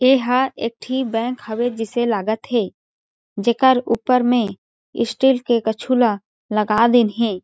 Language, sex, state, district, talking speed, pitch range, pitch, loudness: Chhattisgarhi, female, Chhattisgarh, Jashpur, 135 wpm, 220-250 Hz, 235 Hz, -19 LUFS